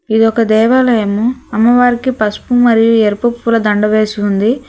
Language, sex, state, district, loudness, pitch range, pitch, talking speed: Telugu, female, Telangana, Hyderabad, -12 LUFS, 215-245 Hz, 225 Hz, 140 wpm